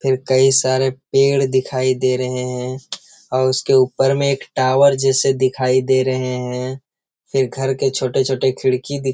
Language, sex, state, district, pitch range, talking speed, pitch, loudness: Hindi, male, Bihar, Jamui, 130-135 Hz, 170 wpm, 130 Hz, -17 LUFS